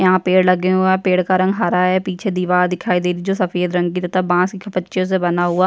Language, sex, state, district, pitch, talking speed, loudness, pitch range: Hindi, female, Chhattisgarh, Jashpur, 185 Hz, 285 wpm, -17 LUFS, 180-185 Hz